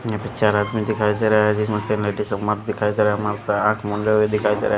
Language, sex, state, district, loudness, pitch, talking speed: Hindi, male, Haryana, Charkhi Dadri, -20 LUFS, 105 Hz, 200 wpm